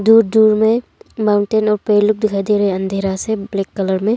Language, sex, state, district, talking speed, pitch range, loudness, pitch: Hindi, female, Arunachal Pradesh, Longding, 230 wpm, 195-220 Hz, -16 LUFS, 210 Hz